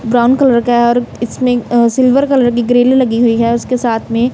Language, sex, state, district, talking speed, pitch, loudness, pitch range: Hindi, female, Punjab, Kapurthala, 220 wpm, 240 Hz, -12 LUFS, 235-250 Hz